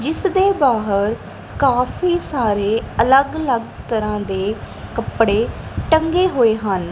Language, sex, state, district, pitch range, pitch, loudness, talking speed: Punjabi, female, Punjab, Kapurthala, 210-315 Hz, 245 Hz, -18 LUFS, 105 wpm